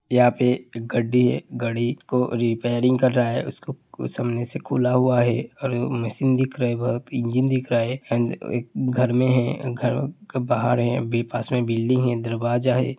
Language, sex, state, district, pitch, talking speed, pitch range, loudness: Hindi, male, Uttar Pradesh, Hamirpur, 125 Hz, 205 wpm, 120-130 Hz, -23 LUFS